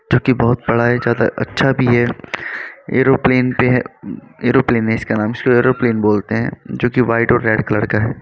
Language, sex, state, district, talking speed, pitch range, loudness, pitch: Hindi, male, Uttar Pradesh, Varanasi, 195 wpm, 115-125 Hz, -16 LUFS, 120 Hz